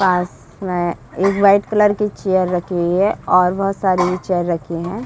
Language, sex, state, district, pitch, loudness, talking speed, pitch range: Hindi, female, Chhattisgarh, Bilaspur, 180 Hz, -17 LUFS, 200 wpm, 175-195 Hz